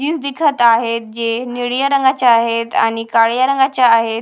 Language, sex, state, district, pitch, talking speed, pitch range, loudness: Marathi, female, Maharashtra, Washim, 240 Hz, 140 wpm, 230-265 Hz, -14 LUFS